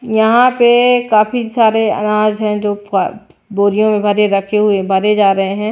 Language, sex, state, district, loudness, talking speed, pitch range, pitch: Hindi, female, Bihar, Patna, -13 LUFS, 170 wpm, 205-220 Hz, 210 Hz